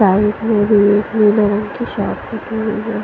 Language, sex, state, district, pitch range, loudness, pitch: Hindi, female, Punjab, Fazilka, 205-220 Hz, -16 LUFS, 210 Hz